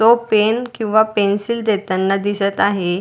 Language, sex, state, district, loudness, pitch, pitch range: Marathi, female, Maharashtra, Dhule, -17 LUFS, 210 Hz, 200-220 Hz